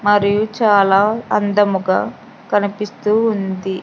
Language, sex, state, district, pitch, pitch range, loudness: Telugu, female, Andhra Pradesh, Sri Satya Sai, 205 Hz, 195-210 Hz, -16 LUFS